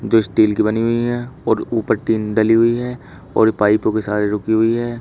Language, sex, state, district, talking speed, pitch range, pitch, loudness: Hindi, male, Uttar Pradesh, Shamli, 225 wpm, 110-115 Hz, 110 Hz, -17 LUFS